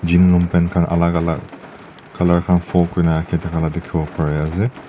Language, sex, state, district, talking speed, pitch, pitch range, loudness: Nagamese, male, Nagaland, Dimapur, 125 wpm, 85 Hz, 85-90 Hz, -18 LUFS